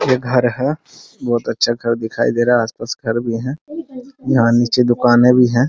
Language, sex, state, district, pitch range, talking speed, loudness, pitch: Hindi, male, Bihar, Muzaffarpur, 120-130 Hz, 230 wpm, -16 LUFS, 120 Hz